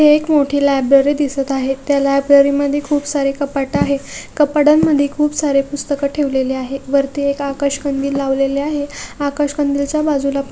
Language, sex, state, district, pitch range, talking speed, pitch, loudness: Marathi, female, Maharashtra, Solapur, 275-290 Hz, 170 wpm, 280 Hz, -16 LUFS